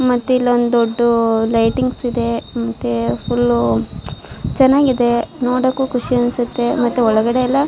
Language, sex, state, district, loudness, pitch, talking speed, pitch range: Kannada, female, Karnataka, Shimoga, -16 LUFS, 240 Hz, 110 wpm, 225-250 Hz